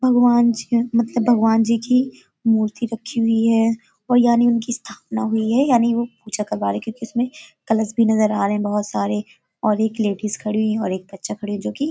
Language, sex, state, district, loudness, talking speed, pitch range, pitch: Hindi, female, Uttar Pradesh, Hamirpur, -20 LUFS, 230 wpm, 215-240 Hz, 225 Hz